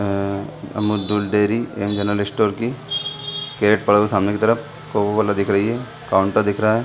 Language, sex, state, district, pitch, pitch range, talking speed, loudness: Hindi, male, Chhattisgarh, Balrampur, 105 Hz, 100-120 Hz, 200 wpm, -20 LUFS